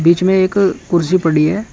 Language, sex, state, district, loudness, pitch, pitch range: Hindi, male, Uttar Pradesh, Shamli, -14 LUFS, 185 Hz, 165-190 Hz